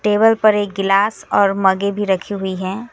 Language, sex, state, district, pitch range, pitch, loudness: Hindi, female, West Bengal, Alipurduar, 195-210 Hz, 200 Hz, -17 LUFS